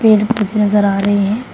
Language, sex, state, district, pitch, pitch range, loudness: Hindi, female, Uttar Pradesh, Shamli, 210 Hz, 205-220 Hz, -14 LUFS